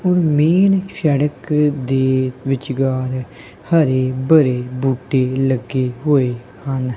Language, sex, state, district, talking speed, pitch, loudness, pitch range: Punjabi, male, Punjab, Kapurthala, 95 wpm, 135 Hz, -17 LUFS, 130-150 Hz